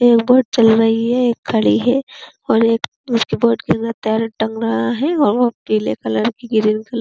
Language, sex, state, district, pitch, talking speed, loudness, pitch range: Hindi, female, Uttar Pradesh, Jyotiba Phule Nagar, 230 Hz, 190 wpm, -16 LUFS, 220-240 Hz